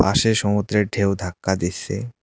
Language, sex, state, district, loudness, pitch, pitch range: Bengali, male, West Bengal, Cooch Behar, -21 LUFS, 100 Hz, 95-110 Hz